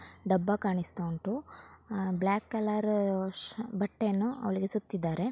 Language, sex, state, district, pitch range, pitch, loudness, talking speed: Kannada, female, Karnataka, Dakshina Kannada, 190-215 Hz, 200 Hz, -32 LUFS, 100 wpm